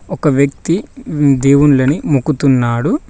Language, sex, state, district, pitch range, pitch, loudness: Telugu, male, Telangana, Mahabubabad, 135-155 Hz, 145 Hz, -13 LUFS